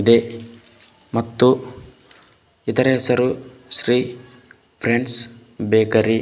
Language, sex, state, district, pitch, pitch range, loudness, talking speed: Kannada, male, Karnataka, Bidar, 120 Hz, 115-125 Hz, -18 LUFS, 75 wpm